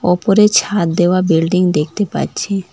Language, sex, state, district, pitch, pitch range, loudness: Bengali, female, West Bengal, Alipurduar, 180 Hz, 175-205 Hz, -14 LUFS